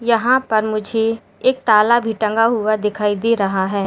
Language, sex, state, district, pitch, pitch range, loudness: Hindi, female, Uttar Pradesh, Lalitpur, 220 Hz, 210-230 Hz, -17 LUFS